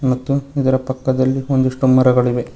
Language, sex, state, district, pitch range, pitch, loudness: Kannada, male, Karnataka, Koppal, 130-135 Hz, 130 Hz, -16 LUFS